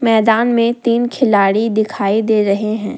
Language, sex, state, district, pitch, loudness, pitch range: Hindi, female, Jharkhand, Deoghar, 220 Hz, -14 LUFS, 210-235 Hz